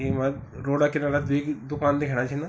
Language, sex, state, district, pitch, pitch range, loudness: Garhwali, male, Uttarakhand, Tehri Garhwal, 145 Hz, 135-145 Hz, -26 LUFS